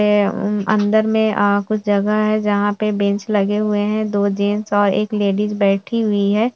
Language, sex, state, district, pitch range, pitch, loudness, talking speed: Hindi, female, Bihar, Saharsa, 205-215 Hz, 205 Hz, -17 LUFS, 190 wpm